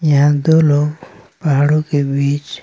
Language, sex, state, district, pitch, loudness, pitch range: Hindi, male, Bihar, West Champaran, 145 Hz, -15 LUFS, 145-155 Hz